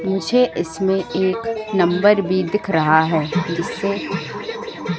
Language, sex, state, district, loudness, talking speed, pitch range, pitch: Hindi, female, Madhya Pradesh, Katni, -19 LUFS, 110 wpm, 170-210 Hz, 190 Hz